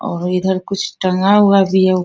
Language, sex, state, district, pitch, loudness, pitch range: Hindi, female, Bihar, Bhagalpur, 190 Hz, -15 LUFS, 185-195 Hz